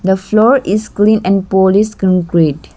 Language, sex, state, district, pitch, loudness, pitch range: English, female, Arunachal Pradesh, Lower Dibang Valley, 195 Hz, -12 LUFS, 185-215 Hz